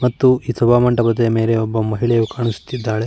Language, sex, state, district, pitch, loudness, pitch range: Kannada, male, Karnataka, Mysore, 115 Hz, -17 LUFS, 115-120 Hz